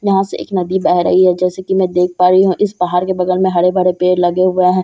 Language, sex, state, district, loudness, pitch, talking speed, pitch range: Hindi, female, Bihar, Katihar, -14 LUFS, 185 Hz, 310 wpm, 180-190 Hz